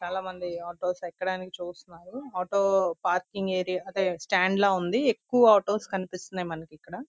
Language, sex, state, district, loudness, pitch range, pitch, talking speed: Telugu, female, Andhra Pradesh, Visakhapatnam, -27 LUFS, 175-195 Hz, 185 Hz, 145 wpm